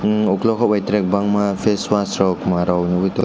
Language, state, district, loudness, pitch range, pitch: Kokborok, Tripura, West Tripura, -18 LUFS, 95-105 Hz, 100 Hz